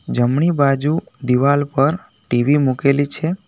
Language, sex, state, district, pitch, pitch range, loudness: Gujarati, male, Gujarat, Navsari, 140 Hz, 135-150 Hz, -17 LUFS